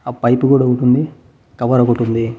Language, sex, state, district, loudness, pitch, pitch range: Telugu, male, Andhra Pradesh, Annamaya, -14 LUFS, 125 Hz, 120-130 Hz